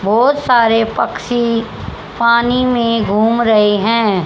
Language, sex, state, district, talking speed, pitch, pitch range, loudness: Hindi, female, Haryana, Charkhi Dadri, 115 wpm, 230 Hz, 220-240 Hz, -13 LUFS